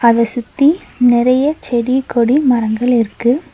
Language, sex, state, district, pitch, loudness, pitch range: Tamil, female, Tamil Nadu, Nilgiris, 245 Hz, -14 LUFS, 235-265 Hz